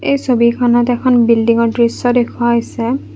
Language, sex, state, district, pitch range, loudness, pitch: Assamese, female, Assam, Kamrup Metropolitan, 235-245 Hz, -13 LUFS, 240 Hz